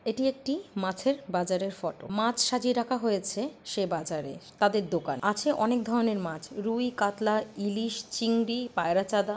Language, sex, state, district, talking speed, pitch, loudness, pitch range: Bengali, female, West Bengal, Purulia, 140 wpm, 215 Hz, -29 LUFS, 195-240 Hz